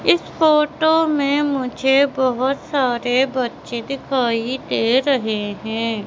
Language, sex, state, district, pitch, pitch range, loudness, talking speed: Hindi, female, Madhya Pradesh, Katni, 260 Hz, 240-280 Hz, -19 LUFS, 110 wpm